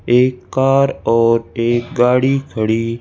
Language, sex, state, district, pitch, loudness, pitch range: Hindi, male, Madhya Pradesh, Bhopal, 120 Hz, -15 LUFS, 115-130 Hz